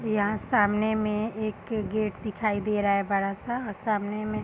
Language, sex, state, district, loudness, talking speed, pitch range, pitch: Hindi, female, Bihar, Madhepura, -27 LUFS, 205 wpm, 205-215 Hz, 215 Hz